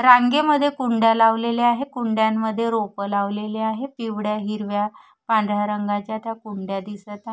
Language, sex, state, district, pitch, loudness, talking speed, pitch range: Marathi, female, Maharashtra, Gondia, 220 Hz, -22 LUFS, 130 wpm, 210-230 Hz